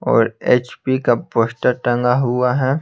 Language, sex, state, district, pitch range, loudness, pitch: Hindi, male, Bihar, Patna, 120-130 Hz, -17 LUFS, 125 Hz